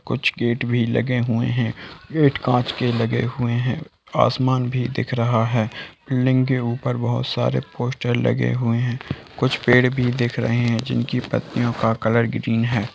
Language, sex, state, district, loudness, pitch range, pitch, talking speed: Hindi, male, Bihar, Lakhisarai, -21 LUFS, 115-125 Hz, 120 Hz, 195 wpm